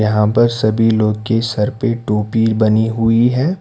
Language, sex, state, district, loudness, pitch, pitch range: Hindi, male, Karnataka, Bangalore, -15 LUFS, 115 Hz, 110-120 Hz